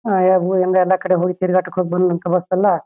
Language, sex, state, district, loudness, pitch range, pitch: Kannada, male, Karnataka, Shimoga, -17 LUFS, 180-185 Hz, 185 Hz